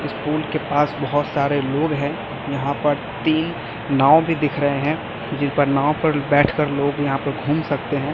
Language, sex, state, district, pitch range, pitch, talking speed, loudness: Hindi, male, Chhattisgarh, Raipur, 140-150 Hz, 145 Hz, 205 wpm, -20 LUFS